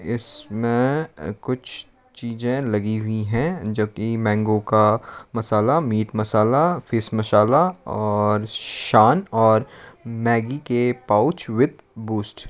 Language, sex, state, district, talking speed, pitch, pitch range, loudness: Hindi, male, Uttar Pradesh, Lucknow, 120 wpm, 115 Hz, 110-125 Hz, -20 LUFS